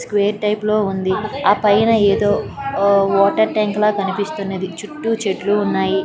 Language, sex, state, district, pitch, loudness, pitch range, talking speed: Telugu, female, Andhra Pradesh, Srikakulam, 205 Hz, -17 LUFS, 195-210 Hz, 150 wpm